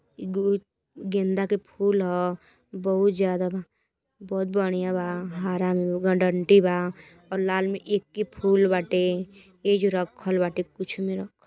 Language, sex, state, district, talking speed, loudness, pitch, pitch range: Bhojpuri, female, Uttar Pradesh, Gorakhpur, 150 wpm, -25 LUFS, 190 Hz, 180-195 Hz